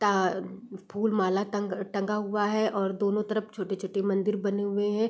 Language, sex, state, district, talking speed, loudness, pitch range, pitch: Hindi, female, Uttar Pradesh, Gorakhpur, 175 wpm, -29 LUFS, 195-210 Hz, 200 Hz